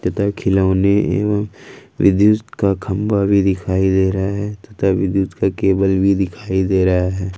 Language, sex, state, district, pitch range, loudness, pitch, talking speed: Hindi, male, Jharkhand, Ranchi, 95-100 Hz, -17 LUFS, 95 Hz, 160 wpm